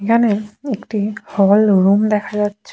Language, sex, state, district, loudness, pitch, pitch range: Bengali, female, West Bengal, Jalpaiguri, -16 LUFS, 210 Hz, 205-220 Hz